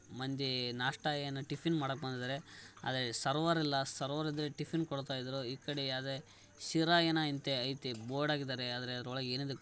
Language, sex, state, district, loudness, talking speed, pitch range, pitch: Kannada, male, Karnataka, Raichur, -37 LUFS, 160 wpm, 130-150 Hz, 135 Hz